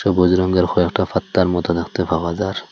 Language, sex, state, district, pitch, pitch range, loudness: Bengali, male, Assam, Hailakandi, 90 Hz, 85-95 Hz, -18 LUFS